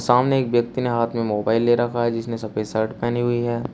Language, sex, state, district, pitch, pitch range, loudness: Hindi, male, Uttar Pradesh, Shamli, 120 Hz, 115-120 Hz, -21 LUFS